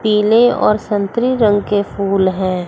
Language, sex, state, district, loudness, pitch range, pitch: Hindi, female, Chandigarh, Chandigarh, -14 LUFS, 195-220 Hz, 205 Hz